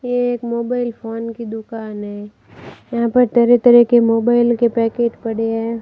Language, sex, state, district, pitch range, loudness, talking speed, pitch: Hindi, female, Rajasthan, Barmer, 225-240 Hz, -16 LUFS, 175 wpm, 235 Hz